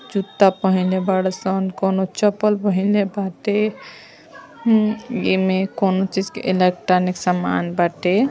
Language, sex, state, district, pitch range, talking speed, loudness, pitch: Bhojpuri, female, Uttar Pradesh, Ghazipur, 185-205 Hz, 110 wpm, -19 LUFS, 190 Hz